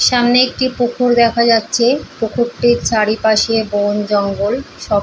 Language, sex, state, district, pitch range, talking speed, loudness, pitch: Bengali, female, West Bengal, Paschim Medinipur, 215-245 Hz, 120 wpm, -14 LUFS, 235 Hz